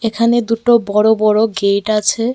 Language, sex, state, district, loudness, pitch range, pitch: Bengali, female, Tripura, West Tripura, -14 LUFS, 210-230 Hz, 220 Hz